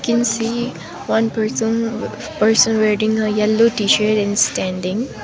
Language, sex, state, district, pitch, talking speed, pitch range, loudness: English, female, Sikkim, Gangtok, 220 Hz, 135 wpm, 215-230 Hz, -17 LUFS